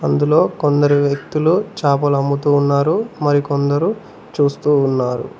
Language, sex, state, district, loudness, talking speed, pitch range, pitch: Telugu, male, Telangana, Mahabubabad, -16 LUFS, 90 wpm, 140-150 Hz, 145 Hz